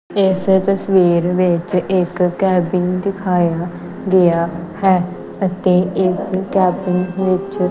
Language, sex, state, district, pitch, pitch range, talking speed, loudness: Punjabi, female, Punjab, Kapurthala, 185 Hz, 180-190 Hz, 95 wpm, -16 LUFS